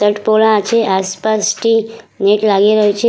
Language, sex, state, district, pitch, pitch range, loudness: Bengali, female, West Bengal, Purulia, 215 Hz, 205-220 Hz, -13 LUFS